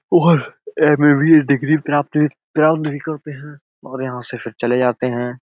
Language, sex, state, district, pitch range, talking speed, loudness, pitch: Hindi, male, Uttar Pradesh, Budaun, 125-155 Hz, 185 wpm, -17 LUFS, 145 Hz